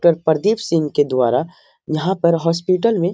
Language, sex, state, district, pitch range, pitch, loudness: Hindi, male, Bihar, Jamui, 155-185 Hz, 165 Hz, -18 LUFS